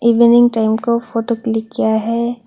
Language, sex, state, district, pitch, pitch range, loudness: Hindi, female, Tripura, West Tripura, 235 Hz, 225-235 Hz, -15 LUFS